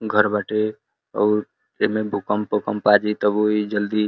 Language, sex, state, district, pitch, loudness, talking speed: Bhojpuri, male, Uttar Pradesh, Deoria, 105 Hz, -21 LUFS, 175 wpm